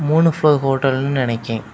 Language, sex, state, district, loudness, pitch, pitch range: Tamil, male, Tamil Nadu, Kanyakumari, -17 LUFS, 135 Hz, 125-150 Hz